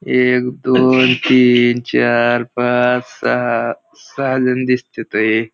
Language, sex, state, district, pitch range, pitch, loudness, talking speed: Marathi, male, Maharashtra, Pune, 120-125 Hz, 125 Hz, -15 LUFS, 110 wpm